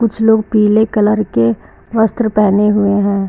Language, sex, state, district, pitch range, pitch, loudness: Hindi, female, Uttar Pradesh, Lucknow, 205-220 Hz, 210 Hz, -13 LUFS